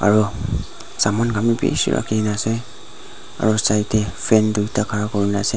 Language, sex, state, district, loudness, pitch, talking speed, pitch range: Nagamese, male, Nagaland, Dimapur, -20 LUFS, 105 Hz, 170 wpm, 105-110 Hz